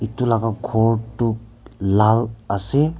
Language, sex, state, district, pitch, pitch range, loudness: Nagamese, male, Nagaland, Kohima, 115 Hz, 110-120 Hz, -20 LUFS